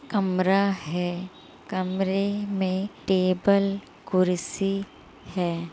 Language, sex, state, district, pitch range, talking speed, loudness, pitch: Hindi, female, Uttar Pradesh, Muzaffarnagar, 185-195 Hz, 75 wpm, -26 LUFS, 190 Hz